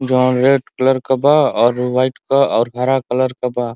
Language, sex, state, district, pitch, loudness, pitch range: Bhojpuri, male, Uttar Pradesh, Ghazipur, 130 Hz, -15 LUFS, 125-135 Hz